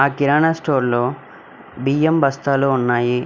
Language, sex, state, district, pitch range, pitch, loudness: Telugu, male, Telangana, Hyderabad, 125-145 Hz, 135 Hz, -18 LUFS